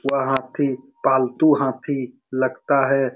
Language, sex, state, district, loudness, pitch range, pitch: Hindi, male, Bihar, Saran, -21 LUFS, 130-140 Hz, 135 Hz